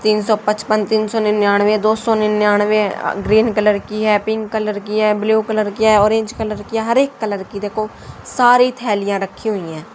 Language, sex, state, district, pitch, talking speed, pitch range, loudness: Hindi, female, Haryana, Rohtak, 215 Hz, 205 wpm, 210-220 Hz, -16 LUFS